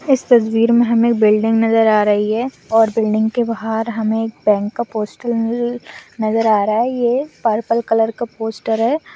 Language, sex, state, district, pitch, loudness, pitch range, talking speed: Hindi, female, West Bengal, Dakshin Dinajpur, 225 Hz, -16 LUFS, 220-235 Hz, 175 wpm